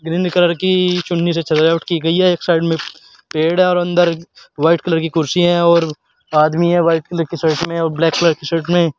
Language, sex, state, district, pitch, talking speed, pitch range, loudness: Hindi, male, Uttar Pradesh, Shamli, 170 Hz, 225 wpm, 165-175 Hz, -15 LUFS